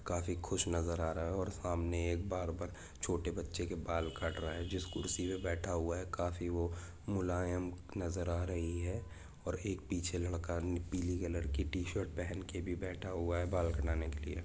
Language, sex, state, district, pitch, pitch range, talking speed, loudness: Hindi, male, Jharkhand, Jamtara, 85 Hz, 85-90 Hz, 190 wpm, -39 LUFS